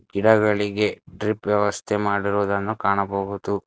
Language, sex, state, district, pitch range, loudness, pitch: Kannada, male, Karnataka, Bangalore, 100-105 Hz, -22 LUFS, 100 Hz